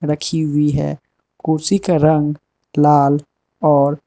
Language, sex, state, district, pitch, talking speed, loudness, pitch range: Hindi, male, Manipur, Imphal West, 150 Hz, 135 wpm, -16 LUFS, 145-155 Hz